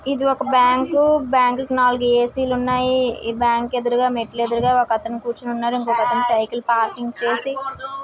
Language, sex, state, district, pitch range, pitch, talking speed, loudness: Telugu, female, Andhra Pradesh, Srikakulam, 235-260 Hz, 245 Hz, 155 wpm, -19 LUFS